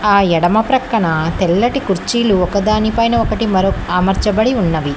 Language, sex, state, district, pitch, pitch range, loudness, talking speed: Telugu, female, Telangana, Hyderabad, 200 Hz, 180-225 Hz, -14 LUFS, 130 wpm